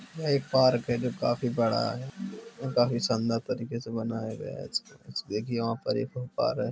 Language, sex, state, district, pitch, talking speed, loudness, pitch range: Hindi, male, Uttar Pradesh, Jalaun, 120 Hz, 150 wpm, -29 LUFS, 115-130 Hz